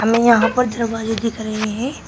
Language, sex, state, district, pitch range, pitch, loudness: Hindi, female, Uttar Pradesh, Shamli, 220-235 Hz, 225 Hz, -18 LUFS